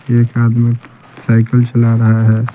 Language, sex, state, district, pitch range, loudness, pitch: Hindi, male, Bihar, Patna, 115-120 Hz, -12 LUFS, 120 Hz